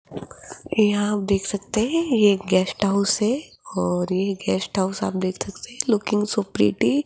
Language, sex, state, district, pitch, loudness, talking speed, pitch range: Hindi, female, Rajasthan, Jaipur, 205 Hz, -22 LUFS, 180 wpm, 190-220 Hz